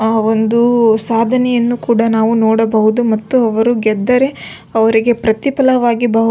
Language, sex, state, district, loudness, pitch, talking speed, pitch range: Kannada, female, Karnataka, Belgaum, -13 LUFS, 230 Hz, 125 wpm, 220-240 Hz